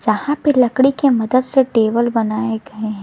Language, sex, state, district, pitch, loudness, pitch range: Hindi, female, Jharkhand, Garhwa, 240 Hz, -16 LUFS, 220-270 Hz